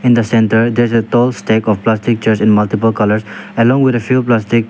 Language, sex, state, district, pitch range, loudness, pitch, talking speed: English, male, Nagaland, Dimapur, 110-120 Hz, -13 LUFS, 115 Hz, 230 wpm